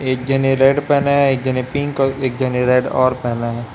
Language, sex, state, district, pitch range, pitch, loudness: Hindi, male, Chhattisgarh, Raipur, 125-135 Hz, 130 Hz, -17 LUFS